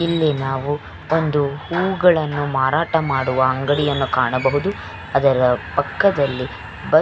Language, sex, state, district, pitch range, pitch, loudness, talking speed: Kannada, female, Karnataka, Belgaum, 130-160 Hz, 140 Hz, -19 LUFS, 110 wpm